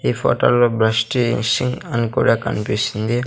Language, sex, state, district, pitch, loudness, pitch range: Telugu, male, Andhra Pradesh, Sri Satya Sai, 115 Hz, -18 LUFS, 110-120 Hz